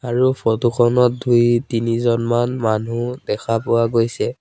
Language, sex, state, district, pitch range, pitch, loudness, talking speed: Assamese, male, Assam, Sonitpur, 115-120 Hz, 120 Hz, -18 LUFS, 120 wpm